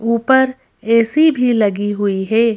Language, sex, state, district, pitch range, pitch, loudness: Hindi, female, Madhya Pradesh, Bhopal, 210-260 Hz, 230 Hz, -15 LUFS